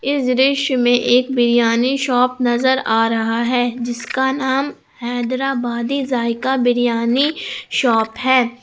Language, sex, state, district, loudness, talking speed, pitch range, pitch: Hindi, female, Jharkhand, Palamu, -17 LUFS, 120 wpm, 240-265 Hz, 245 Hz